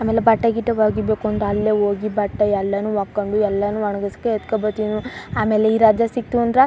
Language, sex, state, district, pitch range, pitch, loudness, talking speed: Kannada, female, Karnataka, Chamarajanagar, 205-225 Hz, 215 Hz, -19 LUFS, 180 wpm